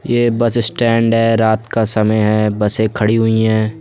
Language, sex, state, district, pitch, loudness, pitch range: Hindi, male, Uttar Pradesh, Budaun, 110 Hz, -14 LUFS, 110-115 Hz